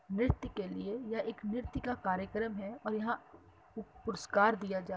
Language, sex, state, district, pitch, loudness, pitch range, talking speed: Hindi, female, Uttar Pradesh, Hamirpur, 215 Hz, -36 LUFS, 200-230 Hz, 180 wpm